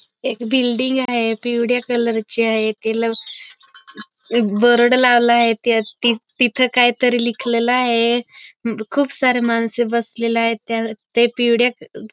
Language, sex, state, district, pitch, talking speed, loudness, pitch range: Marathi, female, Maharashtra, Dhule, 235 Hz, 130 wpm, -17 LUFS, 230-245 Hz